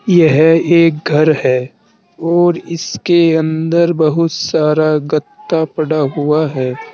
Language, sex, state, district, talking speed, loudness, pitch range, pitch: Hindi, male, Uttar Pradesh, Saharanpur, 110 wpm, -13 LUFS, 150-170 Hz, 160 Hz